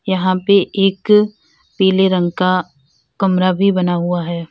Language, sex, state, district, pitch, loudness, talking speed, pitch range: Hindi, female, Uttar Pradesh, Lalitpur, 185 Hz, -15 LUFS, 145 wpm, 175-195 Hz